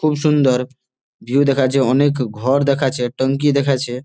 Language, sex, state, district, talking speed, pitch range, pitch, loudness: Bengali, male, West Bengal, Malda, 150 wpm, 125-140 Hz, 130 Hz, -17 LUFS